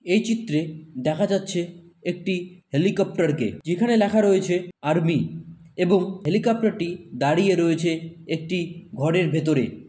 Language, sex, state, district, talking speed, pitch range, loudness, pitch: Bengali, male, West Bengal, Malda, 105 wpm, 165-190 Hz, -23 LUFS, 175 Hz